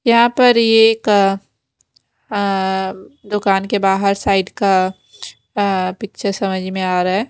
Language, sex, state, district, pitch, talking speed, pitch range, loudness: Hindi, female, Bihar, West Champaran, 195 Hz, 150 wpm, 190-210 Hz, -16 LUFS